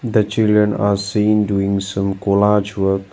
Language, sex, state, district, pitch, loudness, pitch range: English, male, Assam, Sonitpur, 100 Hz, -17 LUFS, 100-105 Hz